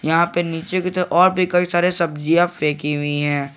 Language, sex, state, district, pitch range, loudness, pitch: Hindi, male, Jharkhand, Garhwa, 150-180 Hz, -18 LUFS, 170 Hz